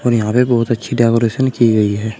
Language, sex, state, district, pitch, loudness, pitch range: Hindi, male, Uttar Pradesh, Shamli, 115 Hz, -15 LUFS, 110-120 Hz